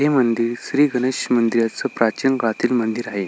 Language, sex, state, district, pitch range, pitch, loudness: Marathi, male, Maharashtra, Sindhudurg, 115-130 Hz, 120 Hz, -19 LUFS